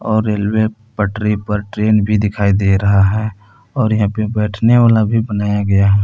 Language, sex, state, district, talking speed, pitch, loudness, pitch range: Hindi, male, Jharkhand, Palamu, 190 wpm, 105 Hz, -15 LUFS, 100-110 Hz